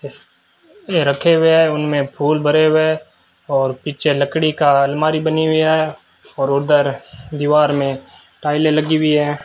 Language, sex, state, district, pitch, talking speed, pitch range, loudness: Hindi, male, Rajasthan, Bikaner, 150 Hz, 160 wpm, 140-155 Hz, -16 LUFS